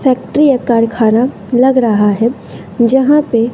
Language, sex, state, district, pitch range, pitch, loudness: Hindi, female, Bihar, West Champaran, 230-265 Hz, 240 Hz, -12 LUFS